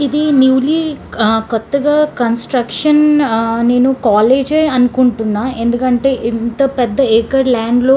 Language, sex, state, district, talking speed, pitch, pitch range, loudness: Telugu, female, Andhra Pradesh, Srikakulam, 120 wpm, 255 Hz, 230-275 Hz, -13 LUFS